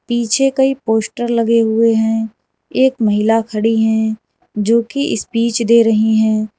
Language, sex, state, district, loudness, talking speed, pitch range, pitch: Hindi, female, Uttar Pradesh, Lalitpur, -15 LUFS, 135 wpm, 220-235 Hz, 225 Hz